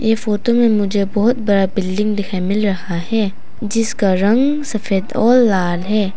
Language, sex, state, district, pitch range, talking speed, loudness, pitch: Hindi, female, Arunachal Pradesh, Papum Pare, 195-225 Hz, 165 wpm, -16 LUFS, 210 Hz